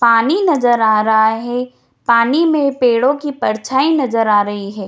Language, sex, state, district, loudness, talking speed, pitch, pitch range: Hindi, female, Bihar, Jamui, -14 LUFS, 170 wpm, 240 Hz, 220-280 Hz